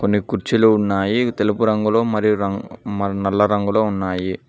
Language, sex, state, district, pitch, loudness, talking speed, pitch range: Telugu, male, Telangana, Mahabubabad, 105 Hz, -19 LUFS, 135 wpm, 100-110 Hz